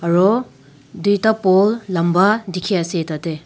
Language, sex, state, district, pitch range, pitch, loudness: Nagamese, male, Nagaland, Dimapur, 170-205 Hz, 185 Hz, -17 LUFS